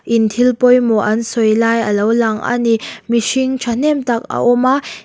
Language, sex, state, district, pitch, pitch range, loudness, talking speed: Mizo, female, Mizoram, Aizawl, 235 Hz, 225-250 Hz, -14 LUFS, 200 wpm